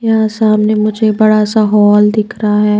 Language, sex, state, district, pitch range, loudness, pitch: Hindi, female, Maharashtra, Washim, 210-215 Hz, -11 LUFS, 215 Hz